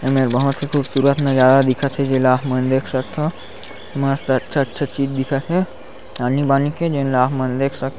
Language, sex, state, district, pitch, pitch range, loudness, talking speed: Chhattisgarhi, male, Chhattisgarh, Sarguja, 135 Hz, 130-140 Hz, -18 LUFS, 195 wpm